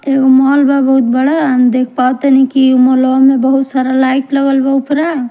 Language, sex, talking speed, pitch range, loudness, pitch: Bhojpuri, female, 225 wpm, 260-275 Hz, -11 LUFS, 265 Hz